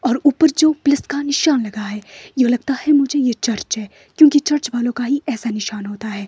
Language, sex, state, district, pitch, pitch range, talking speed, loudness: Hindi, female, Himachal Pradesh, Shimla, 250 Hz, 215-285 Hz, 230 wpm, -17 LUFS